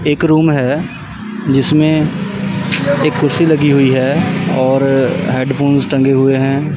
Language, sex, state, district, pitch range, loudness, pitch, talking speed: Hindi, male, Punjab, Kapurthala, 135-165 Hz, -13 LUFS, 145 Hz, 125 wpm